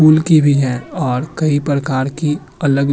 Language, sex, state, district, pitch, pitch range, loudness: Hindi, male, Uttar Pradesh, Muzaffarnagar, 145 Hz, 135-155 Hz, -16 LUFS